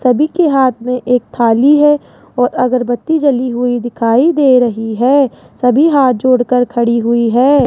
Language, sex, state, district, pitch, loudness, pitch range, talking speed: Hindi, female, Rajasthan, Jaipur, 250 Hz, -12 LUFS, 240-275 Hz, 165 wpm